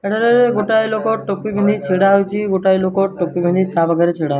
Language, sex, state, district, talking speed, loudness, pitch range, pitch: Odia, male, Odisha, Malkangiri, 205 wpm, -16 LUFS, 185-210 Hz, 195 Hz